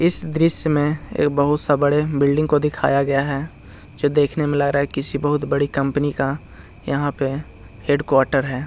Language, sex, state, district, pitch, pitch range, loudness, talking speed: Hindi, male, Bihar, Jahanabad, 145 Hz, 140-150 Hz, -19 LUFS, 195 wpm